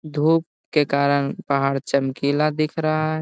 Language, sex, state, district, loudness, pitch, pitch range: Hindi, male, Bihar, Gaya, -21 LUFS, 150 Hz, 140-155 Hz